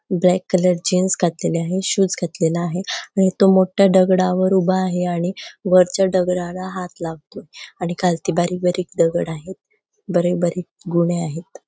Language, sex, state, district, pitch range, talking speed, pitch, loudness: Marathi, female, Goa, North and South Goa, 175-185 Hz, 155 wpm, 180 Hz, -19 LUFS